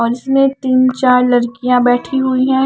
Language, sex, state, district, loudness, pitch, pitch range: Hindi, female, Haryana, Charkhi Dadri, -13 LUFS, 255 Hz, 245-265 Hz